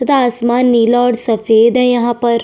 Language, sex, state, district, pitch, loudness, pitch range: Hindi, female, Chhattisgarh, Sukma, 240 Hz, -12 LUFS, 235-245 Hz